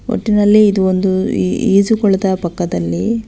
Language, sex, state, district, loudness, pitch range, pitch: Kannada, female, Karnataka, Belgaum, -14 LUFS, 175-210 Hz, 190 Hz